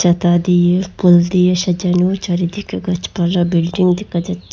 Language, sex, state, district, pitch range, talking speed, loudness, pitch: Bengali, female, Assam, Hailakandi, 175-180 Hz, 130 wpm, -15 LUFS, 180 Hz